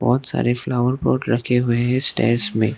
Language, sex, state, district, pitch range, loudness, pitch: Hindi, male, Arunachal Pradesh, Lower Dibang Valley, 120-125 Hz, -18 LUFS, 120 Hz